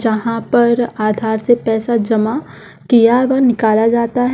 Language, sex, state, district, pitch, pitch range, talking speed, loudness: Hindi, female, Madhya Pradesh, Umaria, 230 Hz, 220-240 Hz, 140 wpm, -14 LUFS